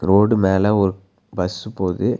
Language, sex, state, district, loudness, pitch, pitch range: Tamil, male, Tamil Nadu, Nilgiris, -19 LUFS, 95 Hz, 95-105 Hz